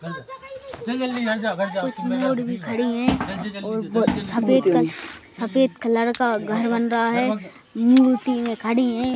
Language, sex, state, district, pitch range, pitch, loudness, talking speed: Hindi, male, Madhya Pradesh, Bhopal, 220-250 Hz, 235 Hz, -21 LUFS, 120 wpm